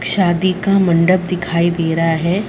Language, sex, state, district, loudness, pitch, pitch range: Hindi, female, Chhattisgarh, Rajnandgaon, -15 LUFS, 175 Hz, 170-185 Hz